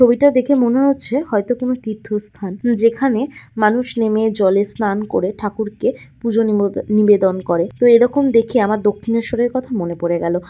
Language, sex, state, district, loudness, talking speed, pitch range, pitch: Bengali, female, West Bengal, Kolkata, -17 LUFS, 155 wpm, 205-245 Hz, 225 Hz